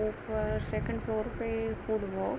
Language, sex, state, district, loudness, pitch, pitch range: Hindi, female, Jharkhand, Sahebganj, -34 LUFS, 220 Hz, 215-220 Hz